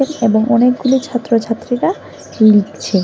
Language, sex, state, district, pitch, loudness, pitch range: Bengali, female, Tripura, West Tripura, 230 Hz, -14 LUFS, 220-255 Hz